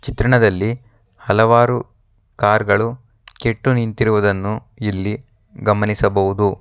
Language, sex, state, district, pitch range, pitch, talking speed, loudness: Kannada, male, Karnataka, Bangalore, 105-115 Hz, 110 Hz, 70 wpm, -17 LUFS